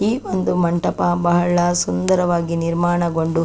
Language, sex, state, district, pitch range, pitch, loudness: Kannada, female, Karnataka, Chamarajanagar, 170-175 Hz, 175 Hz, -18 LUFS